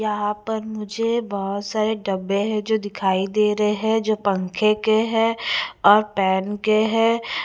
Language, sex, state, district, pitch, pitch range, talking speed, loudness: Hindi, female, Bihar, West Champaran, 215 Hz, 200-220 Hz, 170 wpm, -21 LUFS